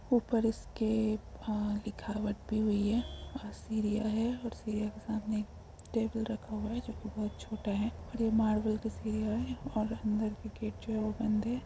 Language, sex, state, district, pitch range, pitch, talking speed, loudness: Hindi, female, Bihar, Jamui, 215-225 Hz, 215 Hz, 200 wpm, -35 LUFS